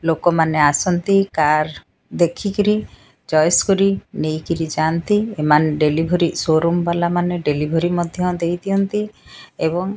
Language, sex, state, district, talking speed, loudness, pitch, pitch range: Odia, female, Odisha, Sambalpur, 110 wpm, -18 LUFS, 170 Hz, 160-190 Hz